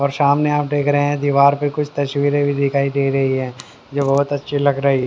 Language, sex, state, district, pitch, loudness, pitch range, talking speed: Hindi, male, Haryana, Jhajjar, 140 Hz, -17 LUFS, 140-145 Hz, 235 wpm